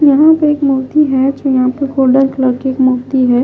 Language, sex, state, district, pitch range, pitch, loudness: Hindi, female, Himachal Pradesh, Shimla, 260-280 Hz, 270 Hz, -12 LUFS